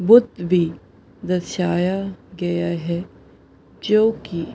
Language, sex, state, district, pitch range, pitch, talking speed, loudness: Hindi, female, Bihar, Gaya, 170-195 Hz, 175 Hz, 80 wpm, -21 LUFS